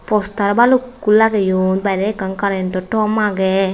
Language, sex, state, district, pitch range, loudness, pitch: Chakma, female, Tripura, West Tripura, 190-215 Hz, -16 LUFS, 200 Hz